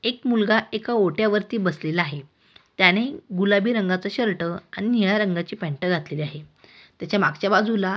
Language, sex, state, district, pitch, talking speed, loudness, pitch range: Marathi, female, Maharashtra, Aurangabad, 200 Hz, 145 wpm, -22 LUFS, 175-215 Hz